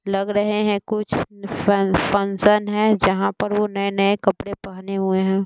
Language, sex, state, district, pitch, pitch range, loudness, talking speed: Hindi, female, Bihar, Muzaffarpur, 200 Hz, 195-210 Hz, -20 LUFS, 155 wpm